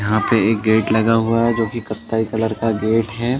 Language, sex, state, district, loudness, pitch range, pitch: Hindi, male, Uttar Pradesh, Jalaun, -18 LUFS, 110-115 Hz, 115 Hz